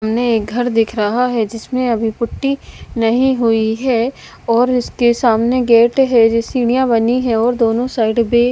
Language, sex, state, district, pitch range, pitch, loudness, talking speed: Hindi, female, Bihar, West Champaran, 225-250 Hz, 235 Hz, -15 LUFS, 175 wpm